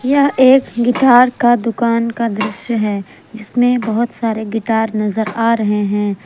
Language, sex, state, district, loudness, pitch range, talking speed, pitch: Hindi, female, Jharkhand, Palamu, -15 LUFS, 215-245 Hz, 155 wpm, 230 Hz